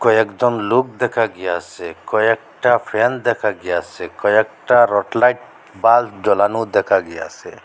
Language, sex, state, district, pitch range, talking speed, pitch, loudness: Bengali, male, Assam, Hailakandi, 110-120 Hz, 115 wpm, 115 Hz, -17 LUFS